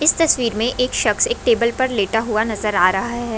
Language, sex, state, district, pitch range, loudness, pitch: Hindi, female, Bihar, Muzaffarpur, 215-250 Hz, -18 LUFS, 235 Hz